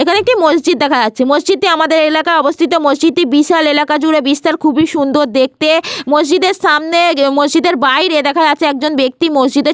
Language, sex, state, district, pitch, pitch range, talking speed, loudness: Bengali, female, Jharkhand, Sahebganj, 310 Hz, 290-330 Hz, 70 wpm, -11 LUFS